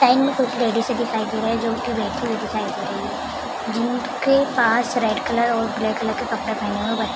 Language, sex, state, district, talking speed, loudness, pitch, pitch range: Hindi, female, Bihar, Madhepura, 245 wpm, -22 LUFS, 235 Hz, 220-245 Hz